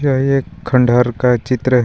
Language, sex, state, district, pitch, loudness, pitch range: Hindi, female, Jharkhand, Garhwa, 125 Hz, -15 LUFS, 125-135 Hz